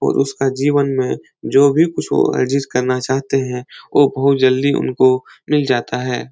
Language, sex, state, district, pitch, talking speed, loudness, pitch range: Hindi, male, Uttar Pradesh, Etah, 135 Hz, 170 wpm, -16 LUFS, 130-140 Hz